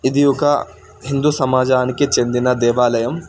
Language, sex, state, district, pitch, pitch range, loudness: Telugu, male, Telangana, Karimnagar, 130 Hz, 125-140 Hz, -16 LUFS